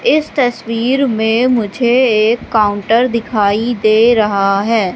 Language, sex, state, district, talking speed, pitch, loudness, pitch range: Hindi, female, Madhya Pradesh, Katni, 120 wpm, 230 Hz, -13 LUFS, 215-245 Hz